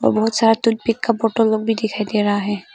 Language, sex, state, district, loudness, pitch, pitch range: Hindi, female, Arunachal Pradesh, Papum Pare, -18 LUFS, 220 Hz, 210-225 Hz